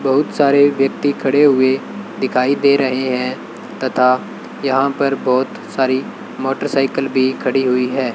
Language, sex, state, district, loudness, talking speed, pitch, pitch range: Hindi, male, Rajasthan, Bikaner, -16 LUFS, 140 wpm, 135 Hz, 130-140 Hz